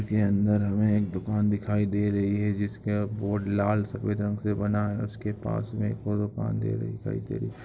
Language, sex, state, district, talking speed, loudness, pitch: Hindi, male, Bihar, Samastipur, 225 wpm, -28 LUFS, 105 Hz